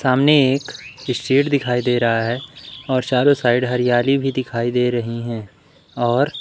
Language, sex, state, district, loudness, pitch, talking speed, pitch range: Hindi, male, Madhya Pradesh, Umaria, -18 LUFS, 125 Hz, 160 wpm, 120-135 Hz